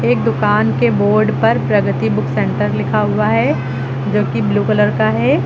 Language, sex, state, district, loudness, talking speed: Hindi, female, Uttar Pradesh, Lucknow, -15 LUFS, 185 wpm